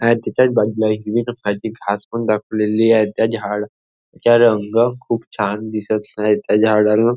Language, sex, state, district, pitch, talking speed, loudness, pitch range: Marathi, male, Maharashtra, Nagpur, 110 Hz, 140 wpm, -17 LUFS, 105-115 Hz